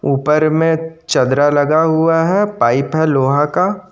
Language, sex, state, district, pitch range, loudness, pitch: Hindi, male, Jharkhand, Ranchi, 145-165 Hz, -14 LUFS, 155 Hz